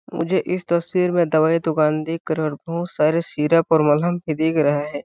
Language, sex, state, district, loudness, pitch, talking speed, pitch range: Hindi, male, Chhattisgarh, Balrampur, -20 LUFS, 160 Hz, 215 wpm, 155-170 Hz